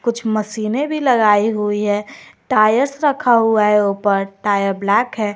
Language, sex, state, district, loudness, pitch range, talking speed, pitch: Hindi, female, Jharkhand, Garhwa, -16 LUFS, 205-240 Hz, 155 wpm, 215 Hz